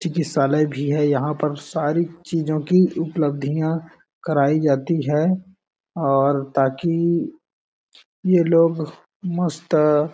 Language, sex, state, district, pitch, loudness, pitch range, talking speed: Hindi, male, Chhattisgarh, Balrampur, 155 Hz, -20 LUFS, 145-170 Hz, 105 wpm